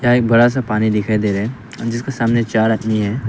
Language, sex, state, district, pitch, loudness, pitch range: Hindi, male, Arunachal Pradesh, Papum Pare, 115 Hz, -17 LUFS, 110-120 Hz